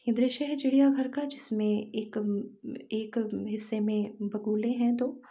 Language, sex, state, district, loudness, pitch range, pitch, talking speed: Hindi, female, Uttar Pradesh, Jalaun, -30 LUFS, 215-265 Hz, 230 Hz, 145 wpm